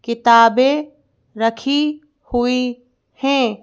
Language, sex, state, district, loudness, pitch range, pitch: Hindi, female, Madhya Pradesh, Bhopal, -17 LUFS, 235-285 Hz, 250 Hz